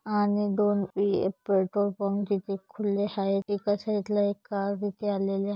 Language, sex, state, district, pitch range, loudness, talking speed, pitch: Marathi, female, Maharashtra, Chandrapur, 195-205 Hz, -28 LUFS, 140 wpm, 200 Hz